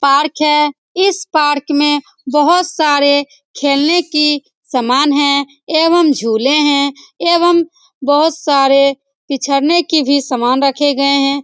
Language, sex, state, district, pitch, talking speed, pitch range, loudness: Hindi, female, Bihar, Saran, 290 Hz, 125 wpm, 275-310 Hz, -13 LUFS